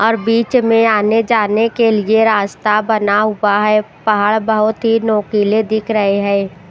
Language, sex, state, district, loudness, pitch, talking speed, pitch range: Hindi, female, Himachal Pradesh, Shimla, -14 LUFS, 215 Hz, 160 wpm, 210-225 Hz